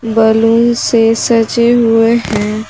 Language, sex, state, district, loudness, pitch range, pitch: Hindi, female, Jharkhand, Garhwa, -11 LUFS, 225-235 Hz, 225 Hz